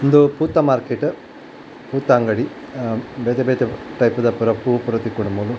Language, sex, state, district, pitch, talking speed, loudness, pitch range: Tulu, male, Karnataka, Dakshina Kannada, 120 Hz, 150 wpm, -19 LUFS, 115-130 Hz